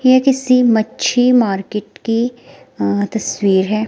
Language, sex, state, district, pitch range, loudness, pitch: Hindi, female, Himachal Pradesh, Shimla, 205-255 Hz, -15 LUFS, 230 Hz